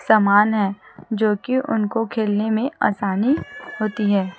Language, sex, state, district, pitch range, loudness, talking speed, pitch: Hindi, female, Chhattisgarh, Raipur, 205-230 Hz, -20 LUFS, 135 wpm, 215 Hz